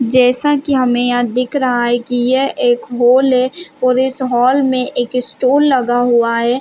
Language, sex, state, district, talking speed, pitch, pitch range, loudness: Hindi, female, Chhattisgarh, Bilaspur, 190 wpm, 255 Hz, 245-265 Hz, -14 LUFS